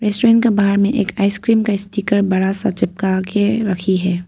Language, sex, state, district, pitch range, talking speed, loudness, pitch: Hindi, female, Arunachal Pradesh, Papum Pare, 190-215 Hz, 170 wpm, -16 LUFS, 200 Hz